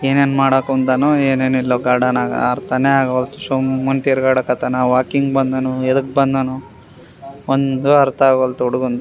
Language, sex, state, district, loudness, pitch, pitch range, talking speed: Kannada, male, Karnataka, Raichur, -16 LUFS, 130 Hz, 130-135 Hz, 105 wpm